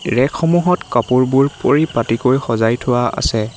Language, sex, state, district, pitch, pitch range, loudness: Assamese, male, Assam, Hailakandi, 130 Hz, 115-140 Hz, -16 LUFS